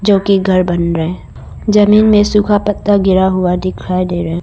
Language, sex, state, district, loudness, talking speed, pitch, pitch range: Hindi, female, Arunachal Pradesh, Lower Dibang Valley, -12 LUFS, 205 wpm, 190 Hz, 180-205 Hz